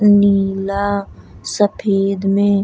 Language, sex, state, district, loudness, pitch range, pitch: Bhojpuri, female, Uttar Pradesh, Deoria, -16 LUFS, 195-205 Hz, 200 Hz